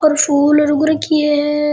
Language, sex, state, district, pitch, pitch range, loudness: Rajasthani, male, Rajasthan, Churu, 295 Hz, 295-305 Hz, -14 LUFS